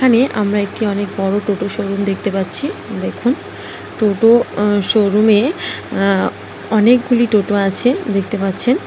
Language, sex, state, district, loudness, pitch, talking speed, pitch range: Bengali, female, West Bengal, North 24 Parganas, -16 LUFS, 205 Hz, 130 wpm, 195-230 Hz